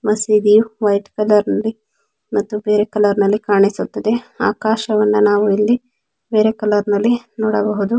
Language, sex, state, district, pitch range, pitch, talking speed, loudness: Kannada, female, Karnataka, Dakshina Kannada, 210-220 Hz, 210 Hz, 105 wpm, -16 LUFS